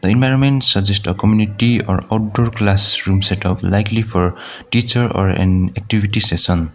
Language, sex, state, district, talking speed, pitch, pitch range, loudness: English, male, Sikkim, Gangtok, 135 wpm, 100 Hz, 95-115 Hz, -15 LUFS